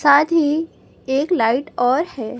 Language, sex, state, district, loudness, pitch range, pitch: Hindi, female, Chhattisgarh, Raipur, -18 LUFS, 245-310 Hz, 285 Hz